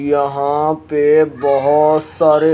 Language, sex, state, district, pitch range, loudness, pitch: Hindi, male, Himachal Pradesh, Shimla, 145-155 Hz, -14 LUFS, 150 Hz